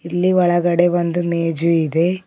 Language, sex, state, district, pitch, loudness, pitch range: Kannada, female, Karnataka, Bidar, 175 Hz, -17 LUFS, 170-175 Hz